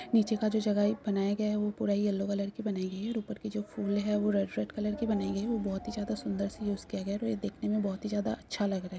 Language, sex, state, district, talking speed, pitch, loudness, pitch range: Hindi, female, Bihar, Kishanganj, 345 wpm, 205 Hz, -32 LUFS, 200-215 Hz